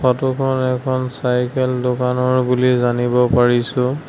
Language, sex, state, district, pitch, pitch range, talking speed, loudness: Assamese, male, Assam, Sonitpur, 125 Hz, 125-130 Hz, 105 wpm, -17 LUFS